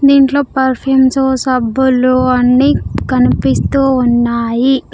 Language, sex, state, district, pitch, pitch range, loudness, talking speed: Telugu, female, Andhra Pradesh, Sri Satya Sai, 255 Hz, 235-265 Hz, -12 LUFS, 75 wpm